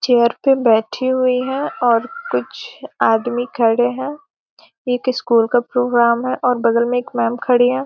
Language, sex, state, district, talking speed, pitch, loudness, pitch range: Hindi, female, Bihar, Gopalganj, 175 wpm, 245 Hz, -17 LUFS, 235-255 Hz